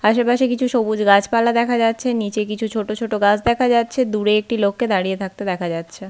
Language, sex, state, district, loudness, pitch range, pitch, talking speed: Bengali, female, West Bengal, Paschim Medinipur, -18 LUFS, 205-235 Hz, 215 Hz, 195 wpm